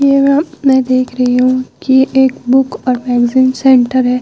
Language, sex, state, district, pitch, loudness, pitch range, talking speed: Hindi, female, Bihar, Vaishali, 260 Hz, -11 LUFS, 250-265 Hz, 170 wpm